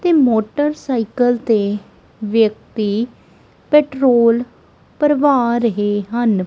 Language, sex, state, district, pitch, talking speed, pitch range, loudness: Punjabi, female, Punjab, Kapurthala, 235 Hz, 75 wpm, 220-275 Hz, -16 LUFS